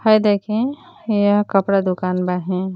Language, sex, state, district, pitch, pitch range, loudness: Bhojpuri, female, Jharkhand, Palamu, 205 Hz, 185-215 Hz, -18 LUFS